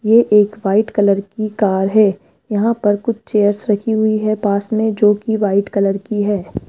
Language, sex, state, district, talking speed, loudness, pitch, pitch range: Hindi, female, Rajasthan, Jaipur, 195 wpm, -16 LUFS, 210 Hz, 200-220 Hz